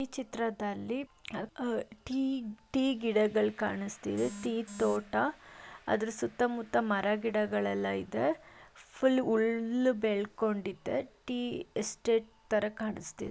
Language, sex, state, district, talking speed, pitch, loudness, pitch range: Kannada, female, Karnataka, Mysore, 100 wpm, 225 Hz, -33 LUFS, 205-245 Hz